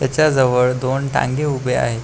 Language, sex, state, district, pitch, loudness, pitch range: Marathi, male, Maharashtra, Pune, 130 Hz, -17 LUFS, 125-140 Hz